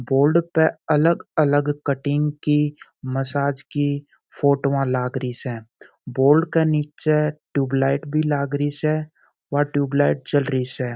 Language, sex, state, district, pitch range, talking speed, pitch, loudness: Marwari, male, Rajasthan, Churu, 135-150 Hz, 120 wpm, 145 Hz, -21 LUFS